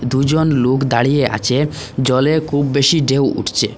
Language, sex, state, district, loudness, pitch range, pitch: Bengali, male, Assam, Hailakandi, -15 LUFS, 130-145 Hz, 140 Hz